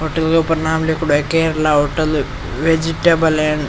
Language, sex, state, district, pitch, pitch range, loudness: Rajasthani, male, Rajasthan, Churu, 160 Hz, 150-160 Hz, -16 LUFS